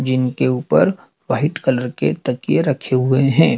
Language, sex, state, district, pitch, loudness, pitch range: Hindi, male, Madhya Pradesh, Dhar, 130 Hz, -18 LUFS, 130-135 Hz